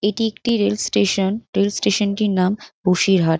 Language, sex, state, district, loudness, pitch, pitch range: Bengali, female, West Bengal, North 24 Parganas, -19 LUFS, 195 Hz, 180-210 Hz